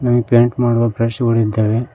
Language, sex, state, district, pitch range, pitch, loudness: Kannada, male, Karnataka, Koppal, 115-120 Hz, 115 Hz, -15 LUFS